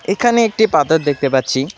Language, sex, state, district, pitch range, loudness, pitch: Bengali, male, West Bengal, Alipurduar, 140-220 Hz, -15 LUFS, 160 Hz